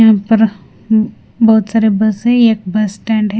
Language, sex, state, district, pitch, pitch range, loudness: Hindi, female, Punjab, Fazilka, 220 Hz, 215-225 Hz, -13 LUFS